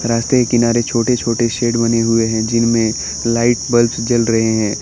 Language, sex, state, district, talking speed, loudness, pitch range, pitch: Hindi, male, Arunachal Pradesh, Lower Dibang Valley, 185 wpm, -15 LUFS, 115-120 Hz, 115 Hz